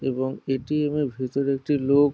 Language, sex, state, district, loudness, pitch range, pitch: Bengali, male, West Bengal, Jhargram, -25 LUFS, 130-145 Hz, 140 Hz